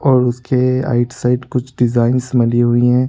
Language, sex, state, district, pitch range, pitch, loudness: Hindi, male, Uttar Pradesh, Budaun, 120-130 Hz, 125 Hz, -15 LUFS